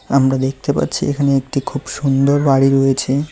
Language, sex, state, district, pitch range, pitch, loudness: Bengali, male, West Bengal, Cooch Behar, 135-140 Hz, 135 Hz, -16 LUFS